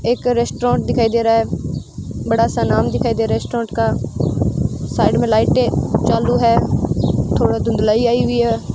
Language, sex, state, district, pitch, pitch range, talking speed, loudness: Hindi, female, Rajasthan, Bikaner, 235 Hz, 225-240 Hz, 170 wpm, -17 LUFS